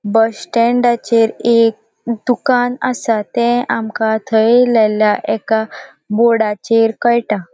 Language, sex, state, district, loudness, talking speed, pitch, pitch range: Konkani, female, Goa, North and South Goa, -14 LUFS, 95 wpm, 225 Hz, 220-235 Hz